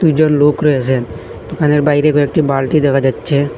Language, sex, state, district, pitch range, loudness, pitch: Bengali, male, Assam, Hailakandi, 135-150 Hz, -13 LUFS, 145 Hz